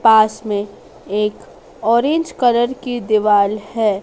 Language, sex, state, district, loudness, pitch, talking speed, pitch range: Hindi, female, Madhya Pradesh, Dhar, -17 LUFS, 220 Hz, 120 wpm, 210-240 Hz